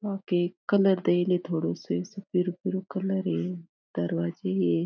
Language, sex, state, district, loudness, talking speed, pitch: Marathi, female, Maharashtra, Aurangabad, -28 LUFS, 135 wpm, 175 Hz